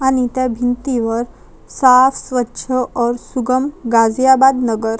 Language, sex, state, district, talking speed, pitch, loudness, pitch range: Marathi, female, Maharashtra, Chandrapur, 95 wpm, 250 Hz, -15 LUFS, 235-260 Hz